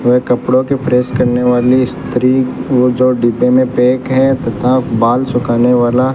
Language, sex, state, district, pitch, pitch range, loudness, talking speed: Hindi, male, Rajasthan, Bikaner, 125 Hz, 125-130 Hz, -12 LUFS, 175 wpm